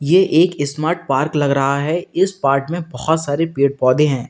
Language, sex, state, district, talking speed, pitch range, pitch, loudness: Hindi, male, Uttar Pradesh, Lalitpur, 210 wpm, 140-165 Hz, 150 Hz, -17 LUFS